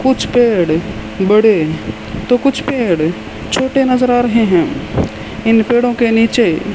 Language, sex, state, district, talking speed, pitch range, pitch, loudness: Hindi, male, Rajasthan, Bikaner, 140 wpm, 180-245 Hz, 230 Hz, -14 LUFS